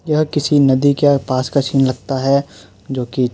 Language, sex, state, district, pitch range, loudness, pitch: Hindi, male, Uttar Pradesh, Muzaffarnagar, 130-145 Hz, -16 LUFS, 135 Hz